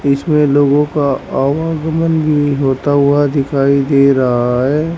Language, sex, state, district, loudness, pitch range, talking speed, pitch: Hindi, male, Haryana, Rohtak, -13 LUFS, 140-150 Hz, 130 wpm, 145 Hz